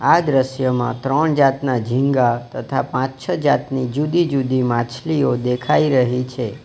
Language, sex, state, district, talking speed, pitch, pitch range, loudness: Gujarati, male, Gujarat, Valsad, 135 wpm, 130 Hz, 125-140 Hz, -18 LUFS